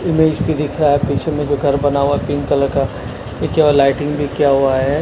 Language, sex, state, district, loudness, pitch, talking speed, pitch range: Hindi, male, Punjab, Kapurthala, -16 LUFS, 145 Hz, 240 wpm, 140-150 Hz